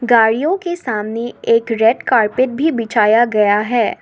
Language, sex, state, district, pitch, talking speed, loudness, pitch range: Hindi, female, Assam, Sonitpur, 230 Hz, 150 wpm, -15 LUFS, 220-245 Hz